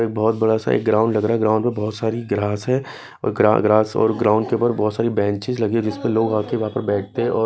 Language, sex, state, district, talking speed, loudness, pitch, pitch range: Hindi, male, Bihar, Patna, 275 wpm, -19 LUFS, 110 Hz, 105-115 Hz